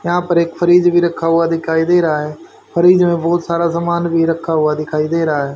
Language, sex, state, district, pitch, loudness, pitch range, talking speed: Hindi, male, Haryana, Charkhi Dadri, 170 Hz, -14 LUFS, 160-175 Hz, 235 wpm